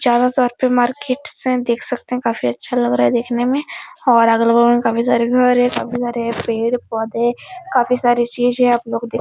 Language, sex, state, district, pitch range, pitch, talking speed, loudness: Hindi, female, Bihar, Araria, 235-250 Hz, 240 Hz, 230 wpm, -17 LUFS